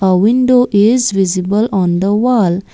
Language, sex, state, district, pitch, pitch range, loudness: English, female, Assam, Kamrup Metropolitan, 205 Hz, 190-240 Hz, -12 LUFS